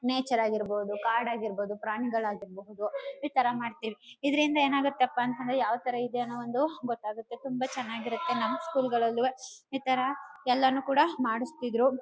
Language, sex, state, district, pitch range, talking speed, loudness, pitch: Kannada, female, Karnataka, Chamarajanagar, 230-265 Hz, 135 wpm, -30 LUFS, 245 Hz